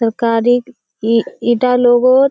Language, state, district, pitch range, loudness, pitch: Surjapuri, Bihar, Kishanganj, 230-250 Hz, -14 LUFS, 240 Hz